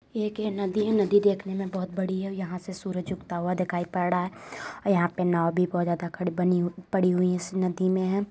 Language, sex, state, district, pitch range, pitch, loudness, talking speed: Hindi, female, Uttar Pradesh, Deoria, 180-195 Hz, 185 Hz, -27 LUFS, 250 wpm